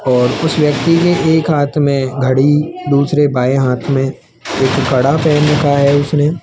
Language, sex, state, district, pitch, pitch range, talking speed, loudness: Hindi, male, Rajasthan, Jaipur, 145 Hz, 135-150 Hz, 175 wpm, -13 LUFS